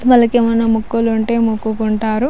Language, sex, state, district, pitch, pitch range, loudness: Telugu, female, Andhra Pradesh, Chittoor, 230 Hz, 220-235 Hz, -15 LUFS